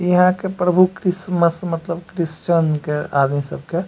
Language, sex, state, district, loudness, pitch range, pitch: Maithili, male, Bihar, Supaul, -19 LUFS, 165-180 Hz, 170 Hz